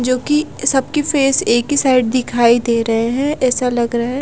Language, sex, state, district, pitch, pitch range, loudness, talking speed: Hindi, female, Punjab, Fazilka, 255 Hz, 235-275 Hz, -15 LUFS, 215 wpm